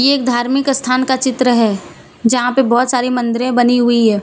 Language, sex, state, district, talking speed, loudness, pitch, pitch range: Hindi, female, Jharkhand, Deoghar, 200 wpm, -14 LUFS, 245 Hz, 240-260 Hz